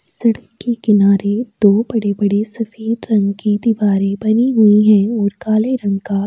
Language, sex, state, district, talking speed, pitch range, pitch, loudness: Hindi, female, Bihar, Kishanganj, 165 wpm, 200-225 Hz, 210 Hz, -15 LUFS